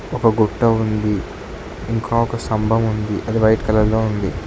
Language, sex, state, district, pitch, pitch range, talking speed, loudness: Telugu, male, Telangana, Hyderabad, 110 Hz, 105-115 Hz, 160 wpm, -18 LUFS